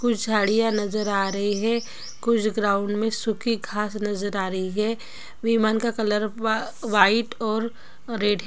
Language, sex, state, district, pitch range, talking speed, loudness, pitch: Hindi, female, Bihar, Jahanabad, 205-230 Hz, 165 wpm, -24 LUFS, 215 Hz